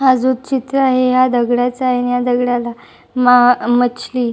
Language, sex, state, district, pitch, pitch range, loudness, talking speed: Marathi, male, Maharashtra, Chandrapur, 245 Hz, 245-255 Hz, -14 LUFS, 165 wpm